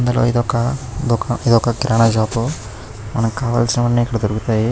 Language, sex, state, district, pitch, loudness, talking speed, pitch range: Telugu, male, Andhra Pradesh, Chittoor, 120 Hz, -17 LUFS, 100 wpm, 115-120 Hz